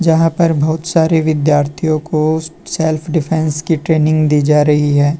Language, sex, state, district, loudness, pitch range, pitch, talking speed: Hindi, male, Uttar Pradesh, Lalitpur, -14 LUFS, 150-160 Hz, 155 Hz, 160 wpm